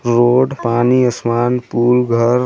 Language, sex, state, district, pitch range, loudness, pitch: Hindi, male, Chhattisgarh, Sarguja, 120-125 Hz, -14 LUFS, 120 Hz